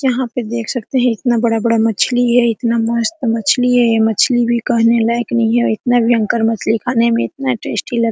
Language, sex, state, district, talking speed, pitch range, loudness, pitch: Hindi, female, Bihar, Araria, 215 wpm, 225-245 Hz, -15 LUFS, 235 Hz